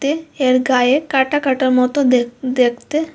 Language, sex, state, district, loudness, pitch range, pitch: Bengali, female, Tripura, West Tripura, -16 LUFS, 255-290 Hz, 265 Hz